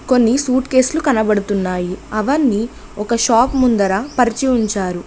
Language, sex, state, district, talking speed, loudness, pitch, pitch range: Telugu, female, Telangana, Mahabubabad, 120 wpm, -16 LUFS, 230 Hz, 205-260 Hz